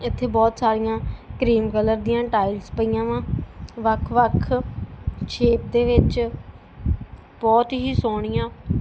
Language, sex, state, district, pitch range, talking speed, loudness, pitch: Punjabi, female, Punjab, Kapurthala, 220-240 Hz, 115 wpm, -22 LUFS, 225 Hz